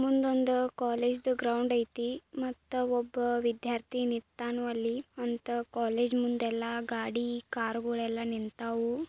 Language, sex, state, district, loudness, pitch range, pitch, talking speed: Kannada, female, Karnataka, Belgaum, -32 LUFS, 235-250 Hz, 240 Hz, 110 wpm